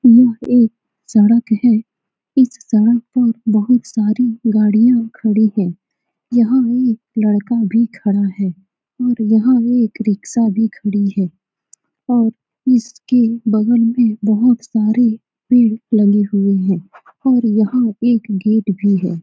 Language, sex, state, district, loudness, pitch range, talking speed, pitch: Hindi, female, Bihar, Saran, -15 LUFS, 210-240 Hz, 130 wpm, 225 Hz